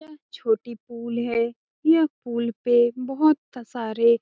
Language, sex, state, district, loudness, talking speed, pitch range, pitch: Hindi, female, Bihar, Jamui, -23 LUFS, 140 wpm, 235-270 Hz, 240 Hz